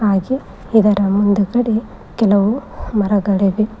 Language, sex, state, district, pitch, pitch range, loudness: Kannada, female, Karnataka, Koppal, 205 Hz, 200-220 Hz, -16 LUFS